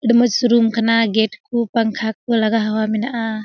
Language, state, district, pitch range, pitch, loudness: Surjapuri, Bihar, Kishanganj, 220-235 Hz, 225 Hz, -17 LUFS